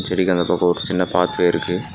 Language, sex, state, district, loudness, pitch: Tamil, male, Tamil Nadu, Nilgiris, -19 LUFS, 90 Hz